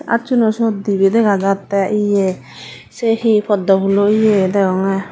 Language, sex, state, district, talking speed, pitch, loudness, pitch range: Chakma, female, Tripura, Dhalai, 140 wpm, 205 Hz, -15 LUFS, 195-220 Hz